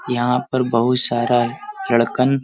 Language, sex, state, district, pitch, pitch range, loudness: Bhojpuri, male, Uttar Pradesh, Varanasi, 125 Hz, 120-130 Hz, -17 LUFS